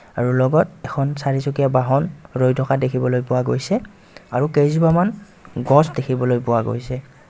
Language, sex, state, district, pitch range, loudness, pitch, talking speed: Assamese, male, Assam, Kamrup Metropolitan, 125-150 Hz, -19 LUFS, 135 Hz, 140 wpm